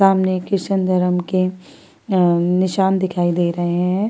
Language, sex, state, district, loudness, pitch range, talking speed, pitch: Hindi, female, Chhattisgarh, Korba, -18 LUFS, 175-190 Hz, 145 wpm, 185 Hz